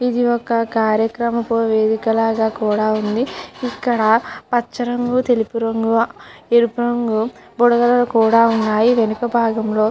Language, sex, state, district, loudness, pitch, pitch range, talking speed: Telugu, female, Andhra Pradesh, Chittoor, -17 LUFS, 230 Hz, 220-240 Hz, 115 wpm